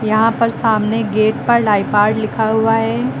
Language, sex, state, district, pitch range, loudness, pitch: Hindi, female, Uttar Pradesh, Lucknow, 215-225 Hz, -15 LUFS, 220 Hz